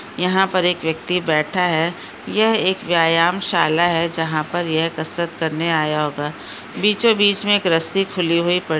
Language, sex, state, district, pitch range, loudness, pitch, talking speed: Hindi, female, Maharashtra, Dhule, 160-185 Hz, -18 LUFS, 170 Hz, 185 wpm